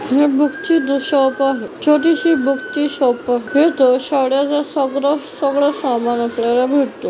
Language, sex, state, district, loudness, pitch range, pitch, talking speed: Marathi, female, Maharashtra, Chandrapur, -16 LUFS, 260-295 Hz, 275 Hz, 145 wpm